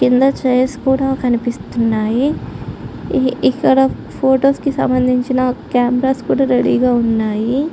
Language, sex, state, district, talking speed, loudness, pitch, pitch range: Telugu, female, Andhra Pradesh, Chittoor, 100 wpm, -15 LUFS, 255 Hz, 245-265 Hz